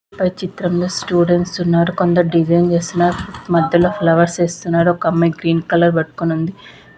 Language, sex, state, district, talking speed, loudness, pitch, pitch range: Telugu, female, Andhra Pradesh, Visakhapatnam, 155 wpm, -16 LUFS, 170 Hz, 170-175 Hz